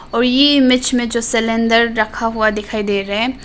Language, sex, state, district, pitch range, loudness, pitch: Hindi, female, Arunachal Pradesh, Papum Pare, 215-245 Hz, -15 LUFS, 230 Hz